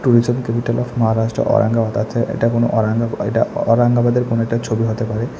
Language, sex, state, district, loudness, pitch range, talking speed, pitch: Bengali, male, Tripura, West Tripura, -17 LUFS, 115-120 Hz, 180 wpm, 115 Hz